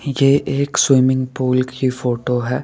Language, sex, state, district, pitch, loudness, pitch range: Hindi, male, Rajasthan, Jaipur, 130 Hz, -17 LUFS, 125-135 Hz